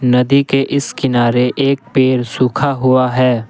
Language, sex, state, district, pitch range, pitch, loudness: Hindi, male, Assam, Kamrup Metropolitan, 125-135 Hz, 130 Hz, -14 LUFS